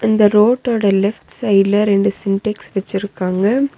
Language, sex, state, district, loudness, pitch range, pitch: Tamil, female, Tamil Nadu, Nilgiris, -16 LUFS, 195-220 Hz, 205 Hz